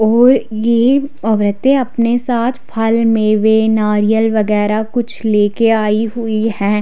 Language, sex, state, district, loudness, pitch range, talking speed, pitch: Hindi, female, Odisha, Khordha, -14 LUFS, 215-235 Hz, 125 wpm, 220 Hz